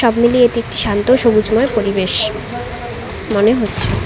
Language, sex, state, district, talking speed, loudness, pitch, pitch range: Bengali, female, West Bengal, Cooch Behar, 120 wpm, -15 LUFS, 225 Hz, 205-235 Hz